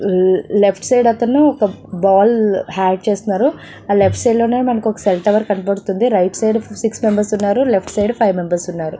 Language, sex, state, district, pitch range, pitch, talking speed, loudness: Telugu, female, Telangana, Nalgonda, 195-230 Hz, 210 Hz, 175 wpm, -15 LUFS